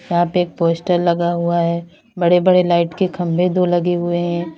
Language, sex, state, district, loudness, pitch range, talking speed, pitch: Hindi, female, Uttar Pradesh, Lalitpur, -17 LUFS, 170-180 Hz, 210 wpm, 175 Hz